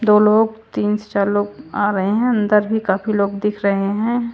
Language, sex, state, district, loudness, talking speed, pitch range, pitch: Hindi, female, Bihar, Katihar, -18 LUFS, 210 wpm, 200-220 Hz, 210 Hz